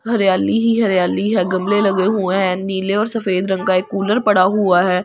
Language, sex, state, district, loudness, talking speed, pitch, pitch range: Hindi, female, Delhi, New Delhi, -16 LUFS, 250 wpm, 195 Hz, 185-210 Hz